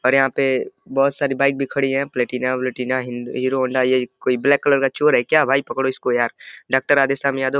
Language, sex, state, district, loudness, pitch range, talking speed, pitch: Hindi, male, Uttar Pradesh, Deoria, -19 LUFS, 130-140 Hz, 230 wpm, 135 Hz